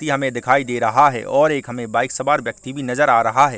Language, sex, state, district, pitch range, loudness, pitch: Hindi, male, Chhattisgarh, Rajnandgaon, 120-140 Hz, -18 LUFS, 130 Hz